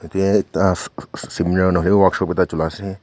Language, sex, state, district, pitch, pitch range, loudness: Nagamese, male, Nagaland, Kohima, 95 Hz, 85-95 Hz, -18 LUFS